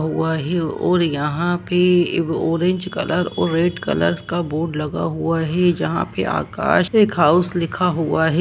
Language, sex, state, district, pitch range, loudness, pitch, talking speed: Hindi, female, Jharkhand, Sahebganj, 160-180 Hz, -19 LUFS, 170 Hz, 155 wpm